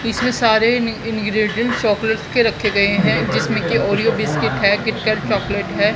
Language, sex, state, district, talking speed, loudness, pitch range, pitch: Hindi, female, Haryana, Charkhi Dadri, 170 wpm, -17 LUFS, 205-230 Hz, 220 Hz